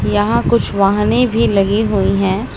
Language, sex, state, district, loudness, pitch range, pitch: Hindi, female, Uttar Pradesh, Lucknow, -14 LUFS, 195-220 Hz, 200 Hz